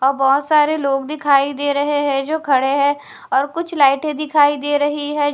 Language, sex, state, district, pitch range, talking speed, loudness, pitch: Hindi, female, Bihar, Katihar, 275-295 Hz, 200 wpm, -17 LUFS, 290 Hz